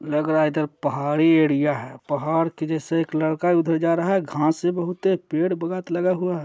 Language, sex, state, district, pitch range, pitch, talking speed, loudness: Hindi, male, Bihar, Jahanabad, 155-175 Hz, 160 Hz, 225 wpm, -22 LUFS